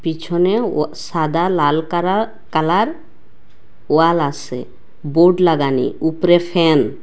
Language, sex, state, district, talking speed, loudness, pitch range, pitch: Bengali, female, Assam, Hailakandi, 110 wpm, -16 LUFS, 155-175 Hz, 170 Hz